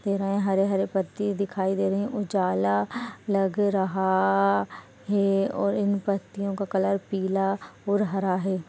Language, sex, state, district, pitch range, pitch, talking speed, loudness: Hindi, female, Maharashtra, Solapur, 190-200 Hz, 195 Hz, 140 wpm, -26 LUFS